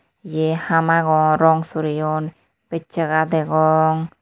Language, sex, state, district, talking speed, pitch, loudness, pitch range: Chakma, female, Tripura, Unakoti, 100 wpm, 160 Hz, -18 LUFS, 155-165 Hz